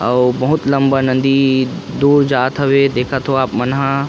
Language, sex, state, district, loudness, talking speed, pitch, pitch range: Chhattisgarhi, male, Chhattisgarh, Rajnandgaon, -14 LUFS, 130 wpm, 135 Hz, 130-140 Hz